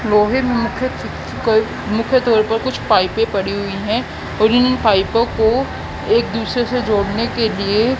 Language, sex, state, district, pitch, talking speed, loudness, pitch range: Hindi, female, Haryana, Charkhi Dadri, 225 Hz, 135 wpm, -17 LUFS, 210-245 Hz